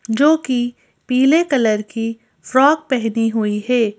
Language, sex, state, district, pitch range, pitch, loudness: Hindi, female, Madhya Pradesh, Bhopal, 225-265 Hz, 240 Hz, -17 LUFS